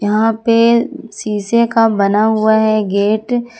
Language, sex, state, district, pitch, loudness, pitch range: Hindi, female, Jharkhand, Ranchi, 220 Hz, -14 LUFS, 210-235 Hz